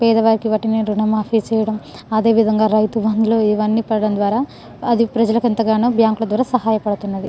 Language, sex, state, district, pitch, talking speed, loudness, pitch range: Telugu, female, Telangana, Nalgonda, 220 Hz, 155 wpm, -17 LUFS, 215-225 Hz